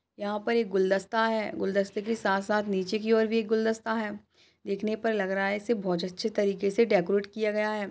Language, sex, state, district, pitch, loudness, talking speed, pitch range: Hindi, female, Uttar Pradesh, Budaun, 210 Hz, -28 LUFS, 210 wpm, 200-225 Hz